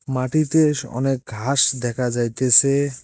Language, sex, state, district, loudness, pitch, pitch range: Bengali, male, West Bengal, Cooch Behar, -19 LUFS, 130 Hz, 125-140 Hz